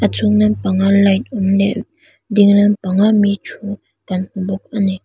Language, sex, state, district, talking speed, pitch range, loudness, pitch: Mizo, female, Mizoram, Aizawl, 200 wpm, 190-205 Hz, -15 LUFS, 200 Hz